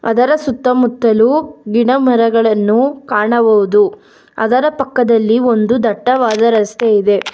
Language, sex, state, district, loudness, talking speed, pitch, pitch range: Kannada, female, Karnataka, Bangalore, -13 LUFS, 80 wpm, 235 Hz, 220-260 Hz